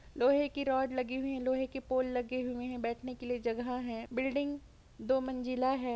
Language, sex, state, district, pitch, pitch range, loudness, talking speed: Hindi, female, Uttar Pradesh, Etah, 255 Hz, 250-265 Hz, -34 LUFS, 200 wpm